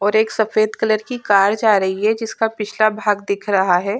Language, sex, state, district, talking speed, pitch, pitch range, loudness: Hindi, female, Chhattisgarh, Sukma, 225 wpm, 215 Hz, 200-220 Hz, -17 LUFS